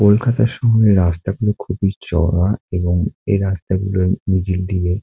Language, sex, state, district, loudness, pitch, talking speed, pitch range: Bengali, male, West Bengal, Kolkata, -18 LUFS, 95 Hz, 145 wpm, 90-105 Hz